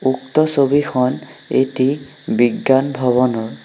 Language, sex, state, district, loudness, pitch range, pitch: Assamese, male, Assam, Sonitpur, -17 LUFS, 125-140 Hz, 130 Hz